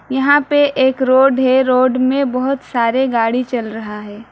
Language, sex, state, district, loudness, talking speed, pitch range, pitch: Hindi, female, West Bengal, Alipurduar, -14 LUFS, 180 wpm, 240-265 Hz, 255 Hz